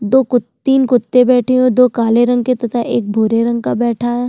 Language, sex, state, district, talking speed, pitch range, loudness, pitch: Hindi, female, Chhattisgarh, Sukma, 265 wpm, 235-250 Hz, -14 LUFS, 245 Hz